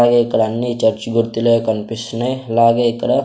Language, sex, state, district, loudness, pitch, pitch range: Telugu, male, Andhra Pradesh, Sri Satya Sai, -16 LUFS, 115 Hz, 115-120 Hz